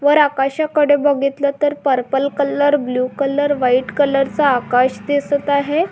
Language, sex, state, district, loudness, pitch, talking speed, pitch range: Marathi, female, Maharashtra, Dhule, -16 LUFS, 285 Hz, 140 wpm, 270-290 Hz